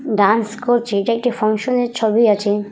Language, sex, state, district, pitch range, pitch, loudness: Bengali, female, West Bengal, Purulia, 210-240 Hz, 220 Hz, -17 LUFS